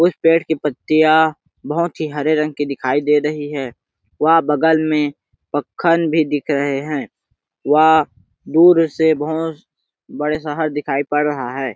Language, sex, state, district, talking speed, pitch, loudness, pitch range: Hindi, male, Chhattisgarh, Sarguja, 160 wpm, 150 Hz, -17 LUFS, 145-160 Hz